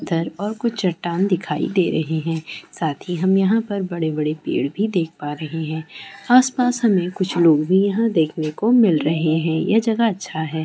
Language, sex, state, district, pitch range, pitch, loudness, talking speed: Hindi, female, Andhra Pradesh, Chittoor, 160-205 Hz, 175 Hz, -20 LUFS, 190 wpm